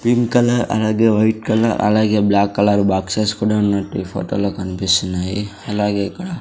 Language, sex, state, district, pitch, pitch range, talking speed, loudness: Telugu, male, Andhra Pradesh, Sri Satya Sai, 105 Hz, 100-110 Hz, 170 wpm, -17 LUFS